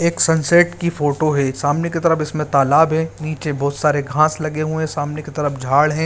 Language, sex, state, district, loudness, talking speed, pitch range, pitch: Hindi, male, Bihar, Saran, -18 LUFS, 240 wpm, 145-160 Hz, 155 Hz